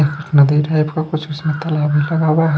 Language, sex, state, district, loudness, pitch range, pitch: Hindi, male, Odisha, Khordha, -16 LUFS, 150-155 Hz, 155 Hz